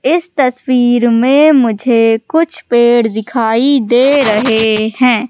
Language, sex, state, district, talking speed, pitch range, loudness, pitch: Hindi, female, Madhya Pradesh, Katni, 115 wpm, 225-265 Hz, -11 LUFS, 240 Hz